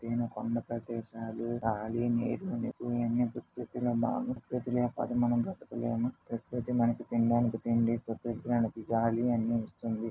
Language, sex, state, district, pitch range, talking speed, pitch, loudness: Telugu, male, Andhra Pradesh, Krishna, 115-120 Hz, 120 wpm, 115 Hz, -33 LUFS